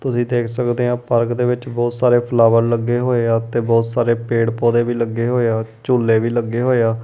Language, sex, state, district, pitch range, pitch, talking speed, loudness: Punjabi, male, Punjab, Kapurthala, 115-120 Hz, 120 Hz, 230 wpm, -17 LUFS